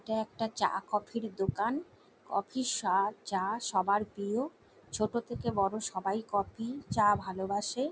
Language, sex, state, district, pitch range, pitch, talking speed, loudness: Bengali, female, West Bengal, Jalpaiguri, 200-230 Hz, 215 Hz, 145 wpm, -33 LUFS